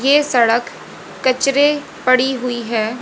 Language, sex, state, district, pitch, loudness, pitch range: Hindi, female, Haryana, Jhajjar, 255 Hz, -16 LUFS, 235-275 Hz